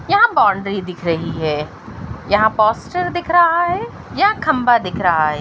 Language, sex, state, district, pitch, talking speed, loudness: Hindi, female, Uttar Pradesh, Jalaun, 215 Hz, 200 wpm, -16 LUFS